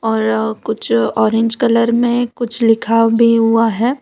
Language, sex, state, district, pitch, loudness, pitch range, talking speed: Hindi, female, Gujarat, Valsad, 230 Hz, -14 LUFS, 220-235 Hz, 150 wpm